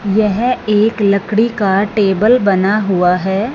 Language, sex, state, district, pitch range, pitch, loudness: Hindi, male, Punjab, Fazilka, 195-215 Hz, 205 Hz, -13 LUFS